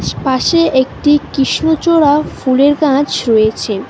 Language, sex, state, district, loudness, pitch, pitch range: Bengali, female, West Bengal, Alipurduar, -12 LUFS, 285 Hz, 260-305 Hz